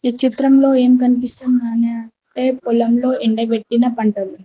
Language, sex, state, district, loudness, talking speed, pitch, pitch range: Telugu, female, Telangana, Mahabubabad, -16 LUFS, 120 wpm, 245 Hz, 230-255 Hz